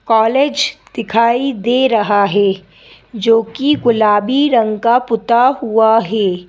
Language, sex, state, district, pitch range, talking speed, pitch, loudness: Hindi, female, Madhya Pradesh, Bhopal, 215-245 Hz, 120 wpm, 230 Hz, -14 LUFS